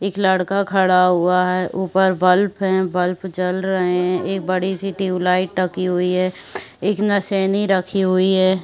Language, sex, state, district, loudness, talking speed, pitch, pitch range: Hindi, female, Uttar Pradesh, Varanasi, -18 LUFS, 145 wpm, 185 Hz, 180-190 Hz